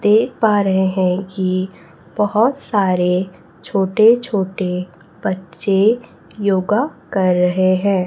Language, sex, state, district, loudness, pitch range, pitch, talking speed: Hindi, female, Chhattisgarh, Raipur, -17 LUFS, 180-210 Hz, 190 Hz, 105 wpm